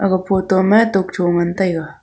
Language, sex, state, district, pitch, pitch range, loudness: Wancho, female, Arunachal Pradesh, Longding, 190 Hz, 175-190 Hz, -16 LUFS